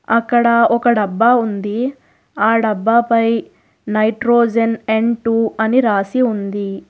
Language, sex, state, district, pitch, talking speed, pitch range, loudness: Telugu, female, Telangana, Hyderabad, 230 Hz, 105 wpm, 215-235 Hz, -15 LUFS